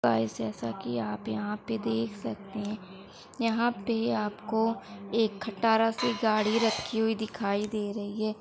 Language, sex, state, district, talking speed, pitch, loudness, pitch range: Hindi, female, Uttar Pradesh, Muzaffarnagar, 155 wpm, 215 Hz, -30 LUFS, 200-225 Hz